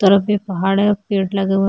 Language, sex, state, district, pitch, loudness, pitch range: Hindi, female, Chhattisgarh, Sukma, 195 Hz, -17 LUFS, 195-200 Hz